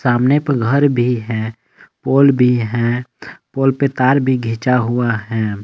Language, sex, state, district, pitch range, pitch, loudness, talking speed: Hindi, male, Jharkhand, Palamu, 115-135 Hz, 125 Hz, -16 LUFS, 160 wpm